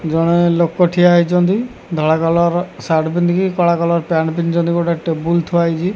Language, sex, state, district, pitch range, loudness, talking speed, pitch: Odia, male, Odisha, Khordha, 165-175 Hz, -15 LUFS, 160 wpm, 170 Hz